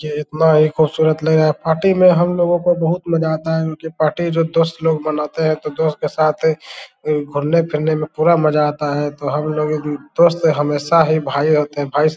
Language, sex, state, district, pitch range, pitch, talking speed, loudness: Hindi, male, Bihar, Saran, 150-165 Hz, 155 Hz, 200 wpm, -16 LUFS